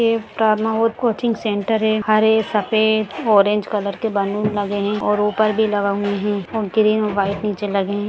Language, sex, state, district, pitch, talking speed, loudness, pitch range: Hindi, female, Bihar, Lakhisarai, 210 Hz, 170 wpm, -19 LUFS, 205-220 Hz